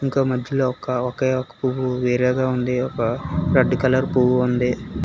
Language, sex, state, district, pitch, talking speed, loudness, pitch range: Telugu, male, Telangana, Hyderabad, 125 Hz, 155 wpm, -21 LUFS, 125-130 Hz